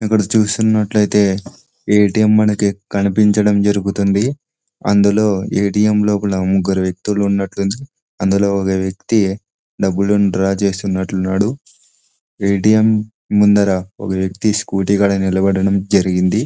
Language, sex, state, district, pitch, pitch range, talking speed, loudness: Telugu, male, Andhra Pradesh, Anantapur, 100 Hz, 95-105 Hz, 95 wpm, -15 LUFS